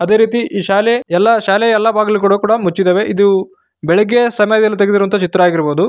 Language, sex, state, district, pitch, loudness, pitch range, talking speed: Kannada, male, Karnataka, Raichur, 205 Hz, -12 LUFS, 195-225 Hz, 175 wpm